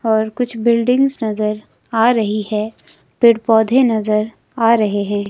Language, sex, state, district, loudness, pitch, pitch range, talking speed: Hindi, female, Himachal Pradesh, Shimla, -16 LUFS, 225 Hz, 215-235 Hz, 145 wpm